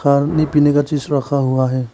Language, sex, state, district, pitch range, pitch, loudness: Hindi, male, Arunachal Pradesh, Papum Pare, 130-145 Hz, 140 Hz, -16 LUFS